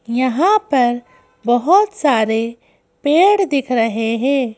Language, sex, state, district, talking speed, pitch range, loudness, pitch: Hindi, female, Madhya Pradesh, Bhopal, 105 wpm, 230-315 Hz, -16 LUFS, 255 Hz